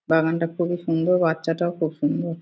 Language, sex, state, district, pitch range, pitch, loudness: Bengali, female, West Bengal, Paschim Medinipur, 160-175 Hz, 165 Hz, -23 LUFS